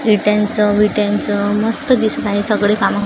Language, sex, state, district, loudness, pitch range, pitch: Marathi, female, Maharashtra, Gondia, -15 LUFS, 205-215 Hz, 210 Hz